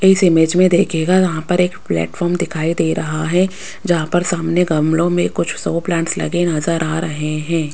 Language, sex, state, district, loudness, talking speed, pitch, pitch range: Hindi, female, Rajasthan, Jaipur, -17 LUFS, 195 wpm, 170 Hz, 160-180 Hz